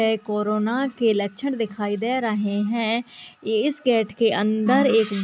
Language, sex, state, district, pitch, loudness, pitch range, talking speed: Hindi, female, Chhattisgarh, Raigarh, 225 Hz, -22 LUFS, 210-240 Hz, 150 wpm